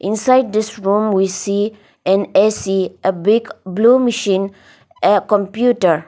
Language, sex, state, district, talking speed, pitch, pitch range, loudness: English, female, Nagaland, Dimapur, 130 wpm, 205 Hz, 195-220 Hz, -16 LUFS